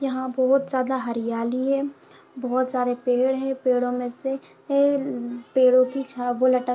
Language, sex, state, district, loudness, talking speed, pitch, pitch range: Hindi, female, Jharkhand, Jamtara, -23 LUFS, 140 wpm, 255 Hz, 245-270 Hz